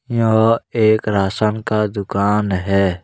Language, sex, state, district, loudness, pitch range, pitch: Hindi, male, Jharkhand, Deoghar, -17 LUFS, 100-110 Hz, 105 Hz